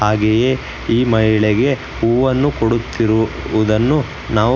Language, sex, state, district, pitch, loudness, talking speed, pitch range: Kannada, male, Karnataka, Bangalore, 115 Hz, -16 LUFS, 80 wpm, 110-125 Hz